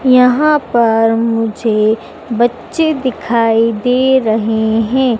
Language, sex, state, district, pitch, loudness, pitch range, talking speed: Hindi, female, Madhya Pradesh, Dhar, 230 Hz, -13 LUFS, 225-255 Hz, 90 wpm